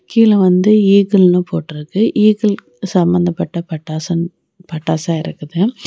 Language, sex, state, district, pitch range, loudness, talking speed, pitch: Tamil, female, Tamil Nadu, Kanyakumari, 165-200 Hz, -14 LUFS, 90 wpm, 180 Hz